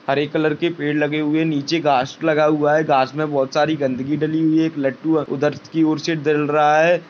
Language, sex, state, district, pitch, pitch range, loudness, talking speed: Hindi, male, Maharashtra, Aurangabad, 150 Hz, 145-155 Hz, -19 LUFS, 245 wpm